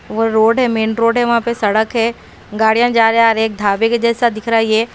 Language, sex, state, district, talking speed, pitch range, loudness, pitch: Hindi, female, Haryana, Rohtak, 290 wpm, 220-235 Hz, -14 LUFS, 225 Hz